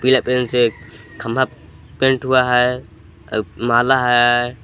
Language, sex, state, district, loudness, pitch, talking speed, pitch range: Hindi, male, Jharkhand, Palamu, -17 LUFS, 120 Hz, 105 wpm, 115-125 Hz